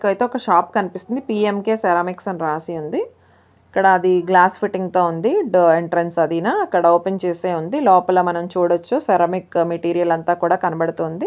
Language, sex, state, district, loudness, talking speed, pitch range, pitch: Telugu, female, Karnataka, Bellary, -18 LUFS, 155 wpm, 170-195 Hz, 180 Hz